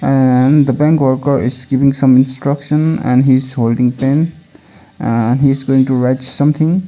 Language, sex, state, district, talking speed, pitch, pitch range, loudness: English, male, Sikkim, Gangtok, 155 wpm, 135 Hz, 130-145 Hz, -13 LUFS